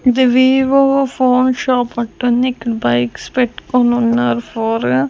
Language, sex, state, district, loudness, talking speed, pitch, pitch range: Telugu, female, Andhra Pradesh, Sri Satya Sai, -15 LUFS, 120 wpm, 250 Hz, 225-255 Hz